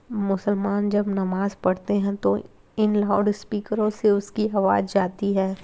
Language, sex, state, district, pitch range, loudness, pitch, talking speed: Hindi, female, Bihar, Begusarai, 195-210 Hz, -23 LUFS, 205 Hz, 140 wpm